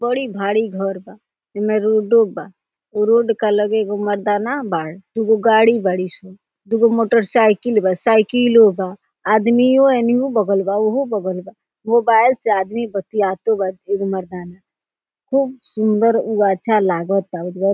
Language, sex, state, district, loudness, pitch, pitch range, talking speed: Bhojpuri, female, Bihar, Gopalganj, -17 LUFS, 215 Hz, 195-230 Hz, 150 wpm